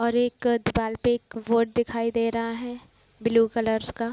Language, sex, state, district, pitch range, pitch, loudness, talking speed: Hindi, female, Bihar, Gopalganj, 230-240 Hz, 230 Hz, -25 LUFS, 205 wpm